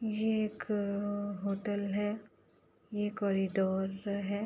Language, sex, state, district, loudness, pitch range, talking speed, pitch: Hindi, female, Uttar Pradesh, Etah, -34 LUFS, 200-210 Hz, 110 wpm, 205 Hz